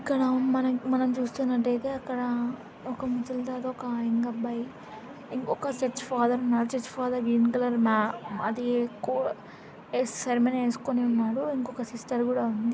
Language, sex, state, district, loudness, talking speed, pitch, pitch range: Telugu, female, Andhra Pradesh, Anantapur, -28 LUFS, 130 wpm, 245 Hz, 235-255 Hz